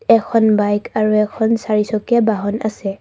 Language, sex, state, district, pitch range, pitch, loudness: Assamese, female, Assam, Kamrup Metropolitan, 210-225 Hz, 215 Hz, -16 LUFS